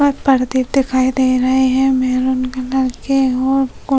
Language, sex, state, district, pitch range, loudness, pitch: Hindi, female, Uttar Pradesh, Hamirpur, 255-270 Hz, -16 LUFS, 260 Hz